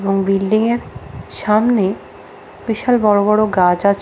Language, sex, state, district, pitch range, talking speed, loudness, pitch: Bengali, female, West Bengal, Paschim Medinipur, 195-220 Hz, 135 wpm, -15 LUFS, 210 Hz